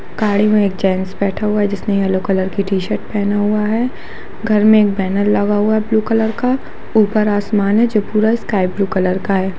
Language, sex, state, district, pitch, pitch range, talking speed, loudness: Hindi, female, Jharkhand, Jamtara, 205 Hz, 195-215 Hz, 210 wpm, -16 LUFS